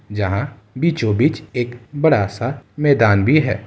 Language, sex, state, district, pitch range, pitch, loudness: Hindi, male, Bihar, Darbhanga, 110-145 Hz, 120 Hz, -18 LUFS